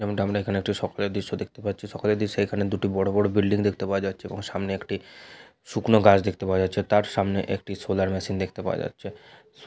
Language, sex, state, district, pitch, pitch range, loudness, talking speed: Bengali, male, West Bengal, Jhargram, 100 Hz, 95-105 Hz, -25 LUFS, 225 wpm